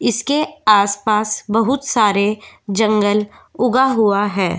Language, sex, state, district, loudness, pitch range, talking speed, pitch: Hindi, female, Goa, North and South Goa, -16 LUFS, 205-240 Hz, 115 wpm, 215 Hz